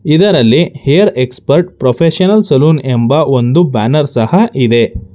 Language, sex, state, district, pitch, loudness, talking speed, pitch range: Kannada, male, Karnataka, Bangalore, 145 Hz, -10 LUFS, 115 wpm, 125-175 Hz